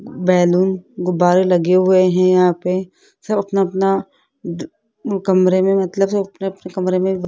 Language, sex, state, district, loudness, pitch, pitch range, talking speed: Hindi, female, Rajasthan, Jaipur, -16 LUFS, 185 Hz, 180-195 Hz, 155 wpm